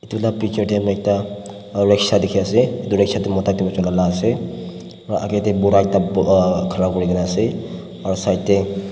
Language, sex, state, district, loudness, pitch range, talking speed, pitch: Nagamese, male, Nagaland, Dimapur, -18 LUFS, 95-100 Hz, 175 wpm, 100 Hz